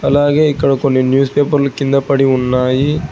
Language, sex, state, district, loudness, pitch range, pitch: Telugu, male, Telangana, Hyderabad, -13 LUFS, 135-145 Hz, 140 Hz